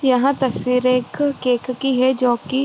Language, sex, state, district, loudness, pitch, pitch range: Hindi, female, Bihar, Gopalganj, -18 LUFS, 255 Hz, 250-270 Hz